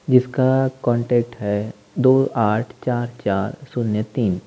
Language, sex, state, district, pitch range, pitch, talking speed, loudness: Hindi, male, Uttar Pradesh, Lalitpur, 105-130 Hz, 120 Hz, 120 wpm, -20 LUFS